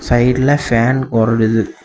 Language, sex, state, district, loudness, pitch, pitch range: Tamil, male, Tamil Nadu, Kanyakumari, -14 LUFS, 120 Hz, 115-130 Hz